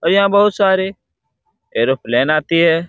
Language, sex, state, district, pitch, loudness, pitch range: Hindi, male, Bihar, Darbhanga, 190 Hz, -15 LUFS, 165-200 Hz